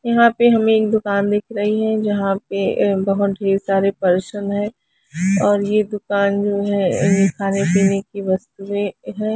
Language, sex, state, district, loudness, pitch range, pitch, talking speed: Hindi, female, Haryana, Charkhi Dadri, -18 LUFS, 195-210 Hz, 200 Hz, 165 wpm